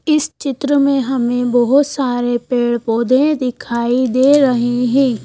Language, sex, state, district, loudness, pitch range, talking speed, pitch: Hindi, female, Madhya Pradesh, Bhopal, -15 LUFS, 245-275 Hz, 125 wpm, 255 Hz